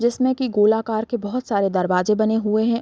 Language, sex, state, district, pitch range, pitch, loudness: Hindi, female, Bihar, Sitamarhi, 210-235 Hz, 220 Hz, -20 LUFS